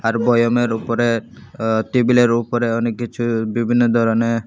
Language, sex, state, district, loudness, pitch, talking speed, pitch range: Bengali, male, Tripura, Unakoti, -18 LUFS, 115 Hz, 120 wpm, 115-120 Hz